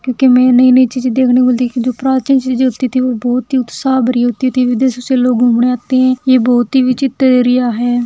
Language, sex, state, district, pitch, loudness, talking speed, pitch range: Hindi, female, Rajasthan, Churu, 255 Hz, -12 LUFS, 240 wpm, 245-260 Hz